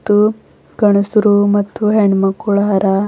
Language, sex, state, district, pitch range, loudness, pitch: Kannada, female, Karnataka, Bidar, 200-210 Hz, -14 LUFS, 205 Hz